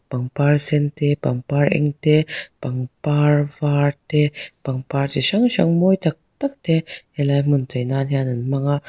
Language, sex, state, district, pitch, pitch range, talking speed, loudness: Mizo, female, Mizoram, Aizawl, 145 Hz, 135-150 Hz, 170 wpm, -20 LUFS